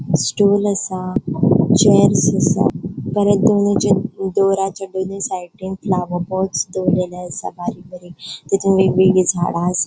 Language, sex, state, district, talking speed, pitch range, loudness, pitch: Konkani, female, Goa, North and South Goa, 110 wpm, 180-195 Hz, -17 LUFS, 190 Hz